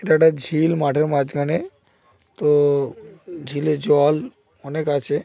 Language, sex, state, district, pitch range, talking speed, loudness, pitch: Bengali, male, West Bengal, Paschim Medinipur, 145-160 Hz, 125 wpm, -20 LUFS, 150 Hz